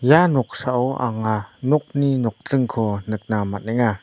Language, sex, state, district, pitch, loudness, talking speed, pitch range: Garo, male, Meghalaya, North Garo Hills, 120 Hz, -21 LUFS, 105 wpm, 110-135 Hz